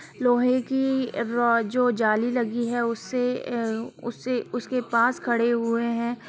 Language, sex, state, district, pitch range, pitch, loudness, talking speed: Hindi, female, Bihar, Sitamarhi, 235-250 Hz, 240 Hz, -25 LUFS, 135 wpm